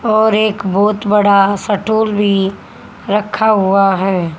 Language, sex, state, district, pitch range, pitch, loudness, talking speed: Hindi, female, Haryana, Charkhi Dadri, 195-215 Hz, 205 Hz, -13 LUFS, 135 wpm